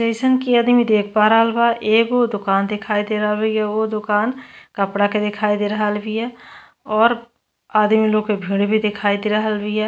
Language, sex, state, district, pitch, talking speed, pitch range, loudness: Bhojpuri, female, Uttar Pradesh, Ghazipur, 215 Hz, 190 wpm, 210-230 Hz, -18 LUFS